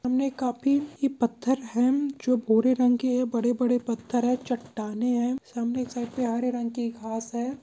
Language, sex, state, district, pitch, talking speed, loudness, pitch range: Hindi, male, Chhattisgarh, Korba, 245 Hz, 180 wpm, -26 LUFS, 235-255 Hz